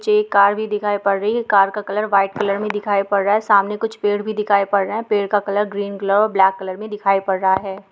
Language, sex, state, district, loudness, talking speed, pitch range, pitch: Hindi, female, Bihar, East Champaran, -18 LUFS, 290 wpm, 195-210 Hz, 205 Hz